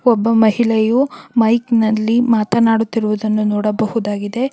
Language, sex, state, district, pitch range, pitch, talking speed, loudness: Kannada, female, Karnataka, Belgaum, 215-235 Hz, 225 Hz, 95 wpm, -15 LUFS